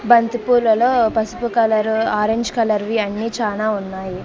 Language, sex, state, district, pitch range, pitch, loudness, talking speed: Telugu, female, Andhra Pradesh, Sri Satya Sai, 210-235 Hz, 220 Hz, -18 LUFS, 125 wpm